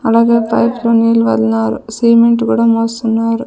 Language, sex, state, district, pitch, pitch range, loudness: Telugu, female, Andhra Pradesh, Sri Satya Sai, 230 Hz, 225-230 Hz, -12 LUFS